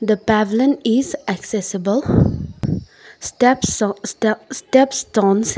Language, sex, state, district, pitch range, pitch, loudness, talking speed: English, female, Nagaland, Kohima, 205-255 Hz, 220 Hz, -18 LUFS, 85 wpm